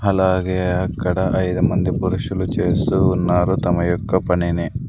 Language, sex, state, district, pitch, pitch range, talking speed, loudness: Telugu, male, Andhra Pradesh, Sri Satya Sai, 95 Hz, 90-95 Hz, 125 wpm, -19 LUFS